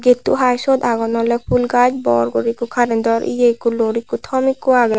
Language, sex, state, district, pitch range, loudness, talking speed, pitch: Chakma, male, Tripura, Unakoti, 230-250 Hz, -16 LUFS, 215 wpm, 235 Hz